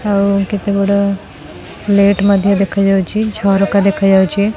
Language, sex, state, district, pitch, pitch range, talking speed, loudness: Odia, female, Odisha, Khordha, 200 Hz, 195-200 Hz, 90 wpm, -13 LUFS